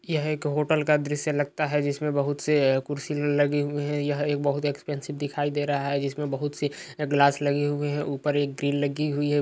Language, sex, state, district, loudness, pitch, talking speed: Hindi, male, Uttar Pradesh, Hamirpur, -26 LUFS, 145 Hz, 225 wpm